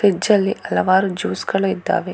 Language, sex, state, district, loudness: Kannada, female, Karnataka, Bangalore, -18 LUFS